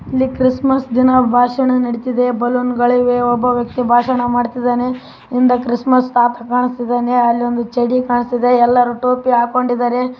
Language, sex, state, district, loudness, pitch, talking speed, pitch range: Kannada, female, Karnataka, Raichur, -15 LUFS, 245 Hz, 135 wpm, 245-250 Hz